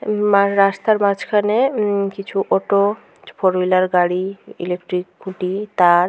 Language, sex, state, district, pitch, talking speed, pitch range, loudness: Bengali, female, West Bengal, Jhargram, 195 Hz, 130 wpm, 185-205 Hz, -18 LUFS